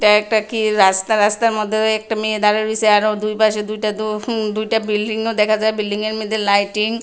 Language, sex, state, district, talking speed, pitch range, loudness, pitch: Bengali, female, Tripura, West Tripura, 195 wpm, 210-220 Hz, -17 LUFS, 215 Hz